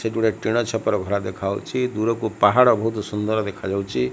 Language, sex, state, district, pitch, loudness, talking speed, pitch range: Odia, male, Odisha, Malkangiri, 110 Hz, -22 LUFS, 160 wpm, 100-115 Hz